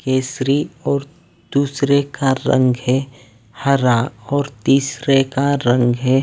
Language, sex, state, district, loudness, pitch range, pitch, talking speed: Hindi, male, Delhi, New Delhi, -17 LUFS, 130-140 Hz, 135 Hz, 115 wpm